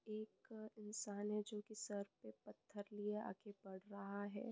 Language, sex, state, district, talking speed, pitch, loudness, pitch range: Hindi, male, Bihar, Jamui, 170 wpm, 210 Hz, -50 LUFS, 200-215 Hz